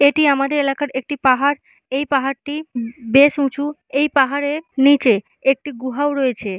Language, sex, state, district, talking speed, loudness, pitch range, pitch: Bengali, female, West Bengal, Malda, 155 wpm, -18 LUFS, 260-290 Hz, 275 Hz